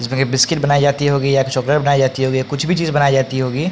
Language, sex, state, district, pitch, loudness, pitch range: Hindi, male, Bihar, Patna, 140 Hz, -16 LUFS, 130-145 Hz